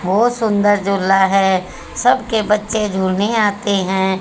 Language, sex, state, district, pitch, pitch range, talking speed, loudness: Hindi, female, Haryana, Jhajjar, 200 Hz, 190-215 Hz, 130 wpm, -16 LUFS